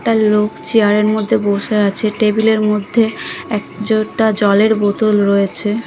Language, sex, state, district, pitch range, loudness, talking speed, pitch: Bengali, female, Bihar, Katihar, 205-220 Hz, -14 LUFS, 135 wpm, 215 Hz